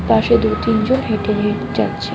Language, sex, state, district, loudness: Bengali, female, West Bengal, Alipurduar, -17 LUFS